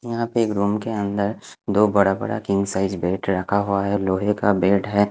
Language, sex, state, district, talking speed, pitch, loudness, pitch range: Hindi, male, Punjab, Fazilka, 225 wpm, 100 Hz, -21 LUFS, 100-105 Hz